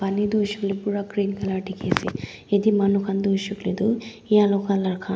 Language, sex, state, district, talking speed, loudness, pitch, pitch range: Nagamese, female, Nagaland, Dimapur, 220 wpm, -23 LUFS, 200 Hz, 195-205 Hz